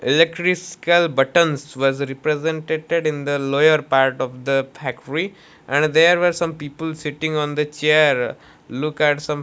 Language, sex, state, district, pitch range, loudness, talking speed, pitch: English, male, Odisha, Malkangiri, 145-160 Hz, -19 LUFS, 145 wpm, 155 Hz